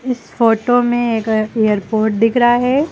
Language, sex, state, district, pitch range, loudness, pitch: Hindi, female, Uttar Pradesh, Lucknow, 220-245 Hz, -15 LUFS, 230 Hz